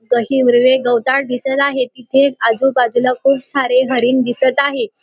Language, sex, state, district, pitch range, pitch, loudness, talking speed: Marathi, female, Maharashtra, Dhule, 245-275 Hz, 255 Hz, -14 LUFS, 120 wpm